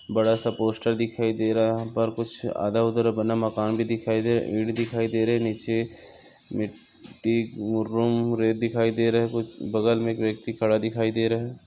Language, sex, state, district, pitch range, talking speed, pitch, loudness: Hindi, male, Maharashtra, Sindhudurg, 110-115 Hz, 160 wpm, 115 Hz, -25 LUFS